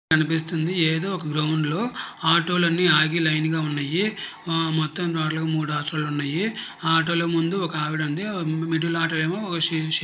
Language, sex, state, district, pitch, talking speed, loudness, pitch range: Telugu, male, Karnataka, Raichur, 160 Hz, 185 wpm, -23 LUFS, 155-170 Hz